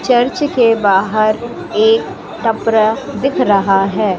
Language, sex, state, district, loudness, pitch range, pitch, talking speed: Hindi, female, Madhya Pradesh, Katni, -14 LUFS, 205-245 Hz, 225 Hz, 115 wpm